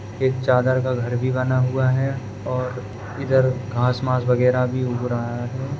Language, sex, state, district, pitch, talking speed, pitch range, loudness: Hindi, male, Bihar, Madhepura, 125 Hz, 175 wpm, 120-130 Hz, -21 LUFS